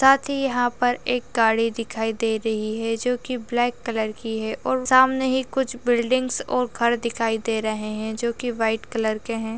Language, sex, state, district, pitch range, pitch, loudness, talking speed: Hindi, female, Uttarakhand, Tehri Garhwal, 225-250 Hz, 235 Hz, -23 LUFS, 205 wpm